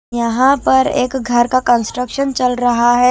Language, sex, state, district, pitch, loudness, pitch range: Hindi, female, Chhattisgarh, Raipur, 250 Hz, -14 LUFS, 240-265 Hz